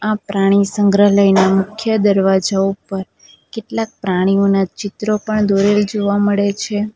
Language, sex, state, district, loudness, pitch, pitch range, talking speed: Gujarati, female, Gujarat, Valsad, -15 LUFS, 200 Hz, 195-210 Hz, 105 wpm